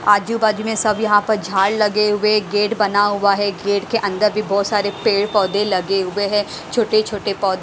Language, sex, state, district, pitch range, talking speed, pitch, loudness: Hindi, female, Himachal Pradesh, Shimla, 200-215 Hz, 205 wpm, 205 Hz, -18 LUFS